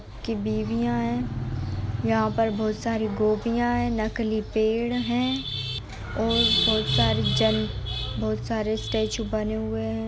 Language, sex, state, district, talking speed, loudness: Hindi, female, Uttar Pradesh, Etah, 130 wpm, -25 LUFS